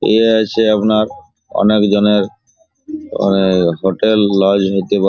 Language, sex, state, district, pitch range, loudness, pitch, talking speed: Bengali, male, West Bengal, Purulia, 95-110 Hz, -14 LUFS, 105 Hz, 105 wpm